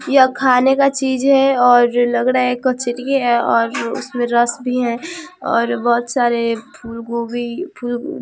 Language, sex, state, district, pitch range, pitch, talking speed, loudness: Hindi, female, Bihar, Vaishali, 235-265 Hz, 245 Hz, 160 wpm, -16 LUFS